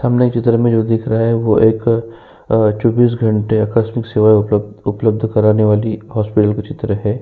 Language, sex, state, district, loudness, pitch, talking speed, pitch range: Hindi, male, Uttar Pradesh, Jyotiba Phule Nagar, -15 LUFS, 110 Hz, 190 wpm, 105-115 Hz